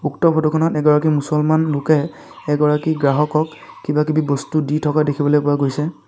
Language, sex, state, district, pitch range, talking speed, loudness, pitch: Assamese, male, Assam, Sonitpur, 145-155 Hz, 150 wpm, -17 LUFS, 150 Hz